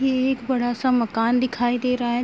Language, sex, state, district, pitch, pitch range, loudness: Hindi, female, Uttar Pradesh, Etah, 245 Hz, 240-255 Hz, -22 LUFS